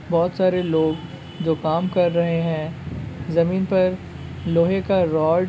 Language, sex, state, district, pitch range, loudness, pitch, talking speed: Hindi, male, Bihar, Muzaffarpur, 160-180 Hz, -21 LUFS, 170 Hz, 165 wpm